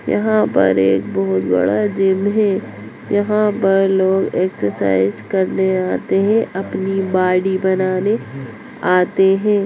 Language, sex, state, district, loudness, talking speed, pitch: Hindi, female, Bihar, Bhagalpur, -16 LUFS, 120 wpm, 185 Hz